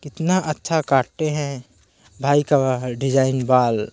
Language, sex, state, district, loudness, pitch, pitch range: Hindi, male, Chhattisgarh, Korba, -20 LUFS, 135 Hz, 125-150 Hz